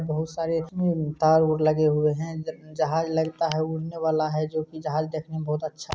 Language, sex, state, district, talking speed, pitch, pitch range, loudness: Hindi, male, Bihar, Kishanganj, 220 wpm, 155 Hz, 155-160 Hz, -25 LUFS